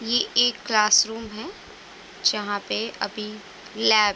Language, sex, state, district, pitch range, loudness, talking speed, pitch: Hindi, female, Uttar Pradesh, Budaun, 210-230 Hz, -22 LUFS, 145 wpm, 220 Hz